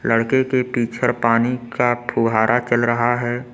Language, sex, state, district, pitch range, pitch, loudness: Hindi, male, Uttar Pradesh, Lucknow, 115-125 Hz, 120 Hz, -19 LUFS